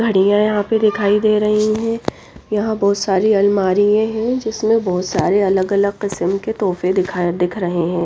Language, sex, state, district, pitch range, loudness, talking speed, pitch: Hindi, female, Odisha, Nuapada, 190-215 Hz, -17 LUFS, 180 wpm, 205 Hz